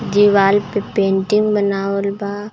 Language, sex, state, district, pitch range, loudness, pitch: Bhojpuri, male, Jharkhand, Palamu, 200-205 Hz, -16 LUFS, 200 Hz